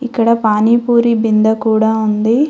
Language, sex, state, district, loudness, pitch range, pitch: Telugu, female, Telangana, Hyderabad, -13 LUFS, 220-235 Hz, 225 Hz